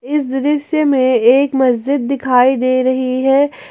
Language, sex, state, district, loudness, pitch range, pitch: Hindi, female, Jharkhand, Ranchi, -14 LUFS, 255-285 Hz, 265 Hz